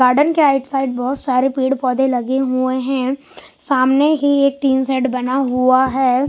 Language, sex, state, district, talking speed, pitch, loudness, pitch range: Hindi, male, Bihar, West Champaran, 180 wpm, 265 Hz, -16 LUFS, 255-275 Hz